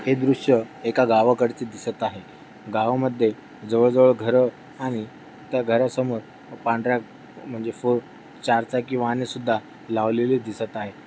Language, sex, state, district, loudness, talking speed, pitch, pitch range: Marathi, male, Maharashtra, Dhule, -23 LUFS, 120 wpm, 120 Hz, 115-125 Hz